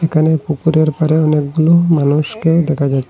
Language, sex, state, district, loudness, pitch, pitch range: Bengali, male, Assam, Hailakandi, -14 LUFS, 155 Hz, 150-165 Hz